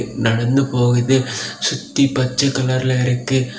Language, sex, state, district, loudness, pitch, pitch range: Tamil, male, Tamil Nadu, Kanyakumari, -18 LUFS, 130 Hz, 125-135 Hz